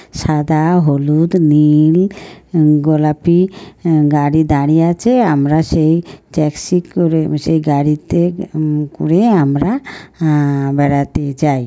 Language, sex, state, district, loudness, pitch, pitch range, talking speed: Bengali, female, West Bengal, North 24 Parganas, -14 LUFS, 155 Hz, 150-170 Hz, 105 wpm